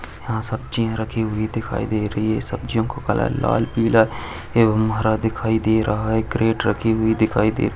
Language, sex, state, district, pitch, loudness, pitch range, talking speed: Hindi, male, Uttar Pradesh, Varanasi, 110 Hz, -20 LUFS, 110-115 Hz, 200 wpm